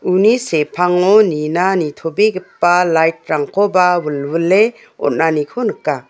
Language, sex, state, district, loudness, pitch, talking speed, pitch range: Garo, female, Meghalaya, West Garo Hills, -15 LUFS, 175 Hz, 90 wpm, 155-195 Hz